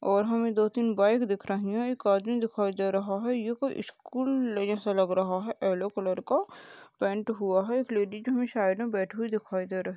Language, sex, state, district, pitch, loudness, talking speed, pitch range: Hindi, female, Chhattisgarh, Balrampur, 210 Hz, -29 LUFS, 235 wpm, 195-230 Hz